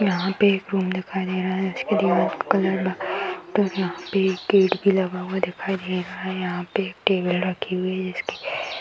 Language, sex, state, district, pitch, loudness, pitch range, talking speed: Hindi, female, Uttar Pradesh, Hamirpur, 190 Hz, -23 LUFS, 185-195 Hz, 225 wpm